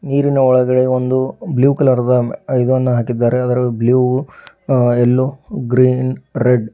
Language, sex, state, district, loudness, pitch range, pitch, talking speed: Kannada, female, Karnataka, Bidar, -15 LUFS, 125-130 Hz, 125 Hz, 125 wpm